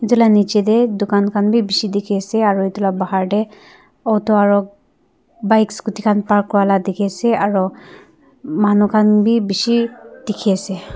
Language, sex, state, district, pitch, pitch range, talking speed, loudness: Nagamese, female, Nagaland, Dimapur, 205 Hz, 200-220 Hz, 170 wpm, -16 LUFS